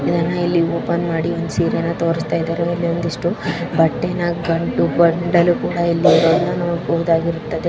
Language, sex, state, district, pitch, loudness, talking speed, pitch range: Kannada, female, Karnataka, Raichur, 170 Hz, -18 LUFS, 130 wpm, 165-170 Hz